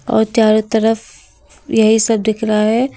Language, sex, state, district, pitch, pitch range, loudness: Hindi, female, Uttar Pradesh, Lucknow, 220 Hz, 220-225 Hz, -14 LUFS